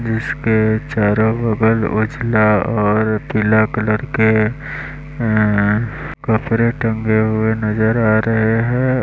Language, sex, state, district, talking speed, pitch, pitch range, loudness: Hindi, male, Bihar, West Champaran, 105 wpm, 110 Hz, 110-115 Hz, -16 LUFS